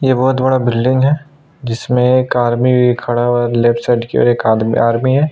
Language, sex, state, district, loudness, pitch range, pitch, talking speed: Hindi, male, Chhattisgarh, Sukma, -14 LUFS, 120-130 Hz, 125 Hz, 190 wpm